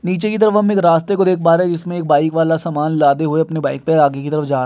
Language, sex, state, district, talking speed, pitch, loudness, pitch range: Hindi, male, Uttar Pradesh, Gorakhpur, 350 wpm, 165 Hz, -15 LUFS, 150-180 Hz